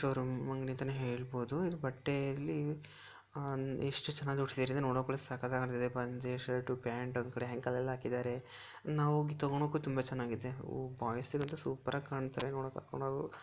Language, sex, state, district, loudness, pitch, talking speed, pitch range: Kannada, male, Karnataka, Dharwad, -38 LUFS, 130 Hz, 150 wpm, 125-140 Hz